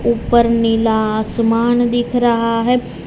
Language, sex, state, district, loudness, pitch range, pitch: Hindi, male, Gujarat, Valsad, -15 LUFS, 230-240 Hz, 230 Hz